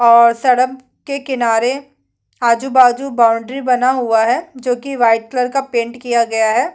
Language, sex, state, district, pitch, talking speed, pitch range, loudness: Hindi, female, Chhattisgarh, Kabirdham, 250 Hz, 180 wpm, 235-265 Hz, -15 LUFS